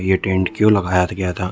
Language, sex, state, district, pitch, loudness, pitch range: Hindi, male, Chhattisgarh, Bilaspur, 95 Hz, -17 LUFS, 90-100 Hz